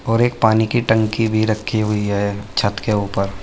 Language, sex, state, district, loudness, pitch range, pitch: Hindi, male, Uttar Pradesh, Saharanpur, -18 LUFS, 100-110 Hz, 110 Hz